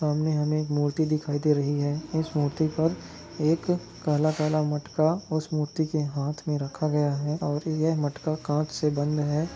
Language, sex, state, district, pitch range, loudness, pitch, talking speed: Hindi, male, Maharashtra, Nagpur, 145-155 Hz, -27 LUFS, 150 Hz, 180 wpm